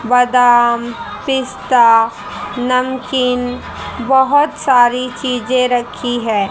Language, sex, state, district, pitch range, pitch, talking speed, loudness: Hindi, female, Haryana, Charkhi Dadri, 240-255 Hz, 250 Hz, 75 wpm, -14 LUFS